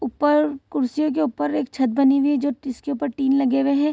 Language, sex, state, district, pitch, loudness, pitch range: Hindi, female, Bihar, Saharsa, 275 Hz, -21 LUFS, 260-290 Hz